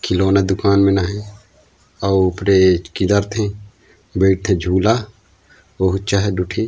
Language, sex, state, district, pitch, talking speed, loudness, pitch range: Chhattisgarhi, male, Chhattisgarh, Raigarh, 95 Hz, 145 wpm, -17 LUFS, 95-100 Hz